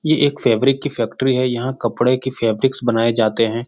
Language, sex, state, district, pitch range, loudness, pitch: Hindi, male, Bihar, Supaul, 115-135 Hz, -17 LUFS, 125 Hz